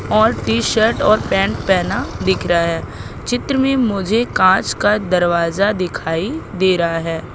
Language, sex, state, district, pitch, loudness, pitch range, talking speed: Hindi, female, Madhya Pradesh, Katni, 185 Hz, -16 LUFS, 165-215 Hz, 155 wpm